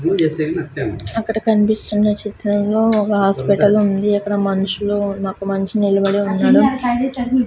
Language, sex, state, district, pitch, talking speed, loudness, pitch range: Telugu, female, Andhra Pradesh, Sri Satya Sai, 205 Hz, 90 wpm, -17 LUFS, 195-220 Hz